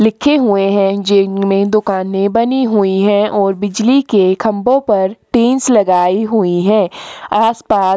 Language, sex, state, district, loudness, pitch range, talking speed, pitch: Hindi, female, Chhattisgarh, Kabirdham, -13 LUFS, 195-225 Hz, 135 wpm, 205 Hz